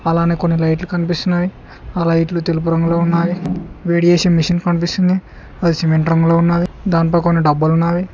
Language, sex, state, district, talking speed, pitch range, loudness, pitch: Telugu, male, Telangana, Hyderabad, 145 wpm, 165-175 Hz, -16 LUFS, 170 Hz